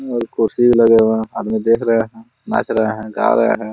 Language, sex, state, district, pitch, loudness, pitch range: Hindi, male, Jharkhand, Jamtara, 115 Hz, -16 LUFS, 110-115 Hz